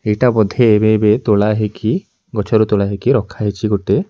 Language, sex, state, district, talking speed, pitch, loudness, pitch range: Odia, male, Odisha, Nuapada, 175 wpm, 110 Hz, -15 LUFS, 105-120 Hz